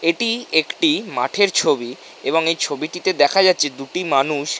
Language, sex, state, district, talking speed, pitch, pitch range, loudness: Bengali, male, West Bengal, North 24 Parganas, 145 wpm, 165 Hz, 145-190 Hz, -18 LUFS